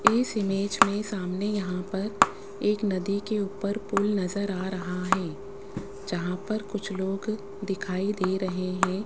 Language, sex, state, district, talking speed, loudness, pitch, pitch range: Hindi, female, Rajasthan, Jaipur, 150 wpm, -28 LUFS, 195 Hz, 190-205 Hz